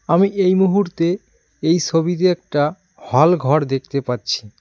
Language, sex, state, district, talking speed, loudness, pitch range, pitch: Bengali, male, West Bengal, Cooch Behar, 115 wpm, -18 LUFS, 140-185 Hz, 165 Hz